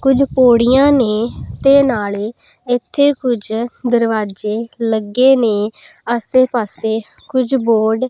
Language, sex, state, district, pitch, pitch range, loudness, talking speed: Punjabi, female, Punjab, Pathankot, 235 Hz, 220-255 Hz, -15 LUFS, 110 wpm